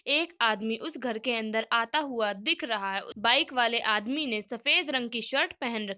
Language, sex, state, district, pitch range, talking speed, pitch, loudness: Hindi, female, Uttar Pradesh, Muzaffarnagar, 220-280 Hz, 220 wpm, 235 Hz, -27 LUFS